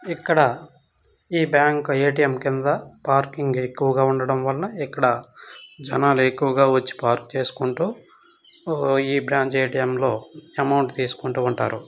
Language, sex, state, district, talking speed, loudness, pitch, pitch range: Telugu, male, Andhra Pradesh, Guntur, 115 wpm, -21 LUFS, 135 Hz, 130-145 Hz